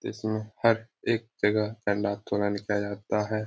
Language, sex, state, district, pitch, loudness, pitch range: Hindi, male, Bihar, Lakhisarai, 105 Hz, -28 LUFS, 100-110 Hz